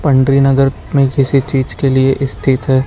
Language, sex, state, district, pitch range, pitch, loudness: Hindi, male, Chhattisgarh, Raipur, 130-135 Hz, 135 Hz, -13 LUFS